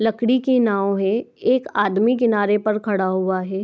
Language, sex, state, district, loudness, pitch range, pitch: Hindi, female, Bihar, Begusarai, -19 LUFS, 195-240 Hz, 210 Hz